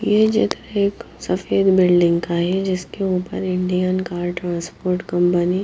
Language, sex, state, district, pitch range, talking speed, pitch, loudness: Hindi, female, Haryana, Jhajjar, 175-195 Hz, 150 wpm, 185 Hz, -19 LUFS